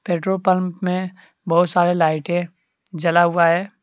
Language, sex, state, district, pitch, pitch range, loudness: Hindi, male, Jharkhand, Deoghar, 175 Hz, 170-185 Hz, -19 LUFS